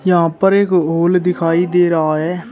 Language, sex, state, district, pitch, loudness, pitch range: Hindi, male, Uttar Pradesh, Shamli, 175 Hz, -14 LUFS, 165-180 Hz